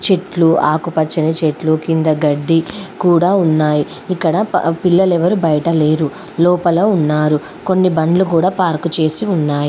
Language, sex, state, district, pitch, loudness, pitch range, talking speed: Telugu, female, Andhra Pradesh, Srikakulam, 165 Hz, -14 LUFS, 155-180 Hz, 130 wpm